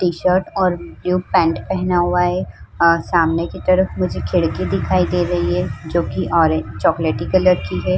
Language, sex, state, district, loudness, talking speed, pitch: Hindi, female, Uttar Pradesh, Muzaffarnagar, -18 LUFS, 190 wpm, 170 Hz